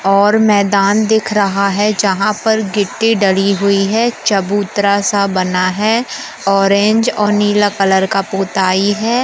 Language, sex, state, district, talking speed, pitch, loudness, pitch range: Hindi, female, Madhya Pradesh, Umaria, 145 wpm, 200 Hz, -13 LUFS, 195-215 Hz